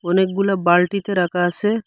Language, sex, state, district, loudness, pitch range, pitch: Bengali, male, Assam, Hailakandi, -18 LUFS, 175-200 Hz, 185 Hz